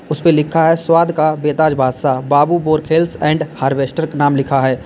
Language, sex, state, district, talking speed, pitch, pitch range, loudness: Hindi, male, Uttar Pradesh, Lalitpur, 200 wpm, 155 Hz, 140-160 Hz, -14 LUFS